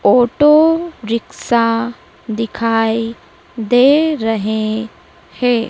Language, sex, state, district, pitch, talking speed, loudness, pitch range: Hindi, female, Madhya Pradesh, Dhar, 230 Hz, 65 wpm, -15 LUFS, 225-290 Hz